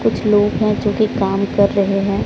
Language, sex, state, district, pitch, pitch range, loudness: Hindi, male, Odisha, Sambalpur, 205 Hz, 200-210 Hz, -16 LUFS